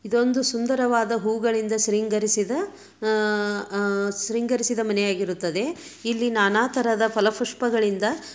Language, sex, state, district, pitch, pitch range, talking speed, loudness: Kannada, female, Karnataka, Dharwad, 220 Hz, 210-240 Hz, 95 wpm, -23 LUFS